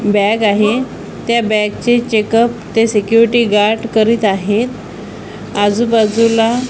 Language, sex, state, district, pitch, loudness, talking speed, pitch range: Marathi, female, Maharashtra, Washim, 225 Hz, -13 LUFS, 115 wpm, 210-235 Hz